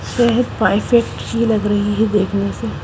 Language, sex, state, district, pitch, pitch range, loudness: Hindi, female, Punjab, Kapurthala, 220 Hz, 205-235 Hz, -17 LUFS